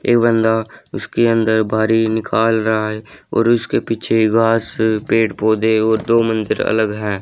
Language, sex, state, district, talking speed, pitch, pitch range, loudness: Hindi, male, Haryana, Charkhi Dadri, 150 wpm, 110 Hz, 110-115 Hz, -16 LUFS